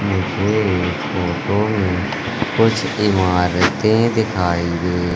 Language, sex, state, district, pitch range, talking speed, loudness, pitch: Hindi, male, Madhya Pradesh, Katni, 90-105 Hz, 95 wpm, -18 LUFS, 95 Hz